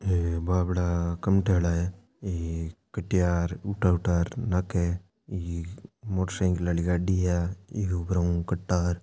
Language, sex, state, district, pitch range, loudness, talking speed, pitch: Marwari, male, Rajasthan, Nagaur, 85-95 Hz, -28 LUFS, 140 wpm, 90 Hz